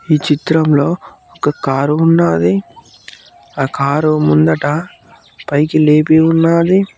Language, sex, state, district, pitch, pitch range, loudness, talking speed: Telugu, male, Telangana, Mahabubabad, 150 Hz, 140-160 Hz, -13 LUFS, 95 wpm